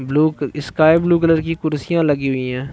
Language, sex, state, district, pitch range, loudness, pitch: Hindi, male, Chhattisgarh, Balrampur, 140-165 Hz, -17 LUFS, 155 Hz